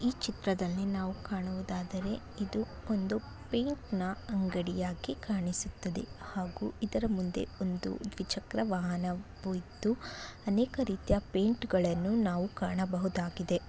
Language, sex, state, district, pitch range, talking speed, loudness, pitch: Kannada, female, Karnataka, Bellary, 185-210 Hz, 95 wpm, -34 LUFS, 190 Hz